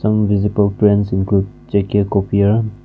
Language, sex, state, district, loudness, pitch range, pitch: English, male, Nagaland, Kohima, -16 LUFS, 100-105 Hz, 100 Hz